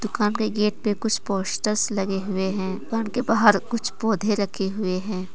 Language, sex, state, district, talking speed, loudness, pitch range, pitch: Hindi, female, Jharkhand, Deoghar, 190 wpm, -23 LUFS, 195-220 Hz, 210 Hz